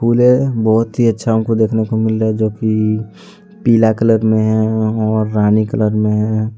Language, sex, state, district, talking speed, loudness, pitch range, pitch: Hindi, male, Jharkhand, Deoghar, 180 wpm, -14 LUFS, 110-115 Hz, 110 Hz